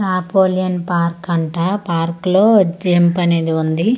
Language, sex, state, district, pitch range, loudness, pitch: Telugu, female, Andhra Pradesh, Manyam, 170-190 Hz, -16 LUFS, 175 Hz